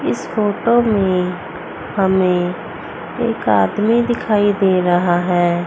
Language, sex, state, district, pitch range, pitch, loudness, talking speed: Hindi, female, Chandigarh, Chandigarh, 180-210 Hz, 190 Hz, -16 LUFS, 105 wpm